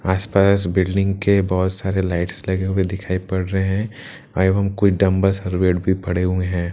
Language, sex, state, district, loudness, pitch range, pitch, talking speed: Hindi, male, Bihar, Katihar, -19 LUFS, 95-100 Hz, 95 Hz, 185 wpm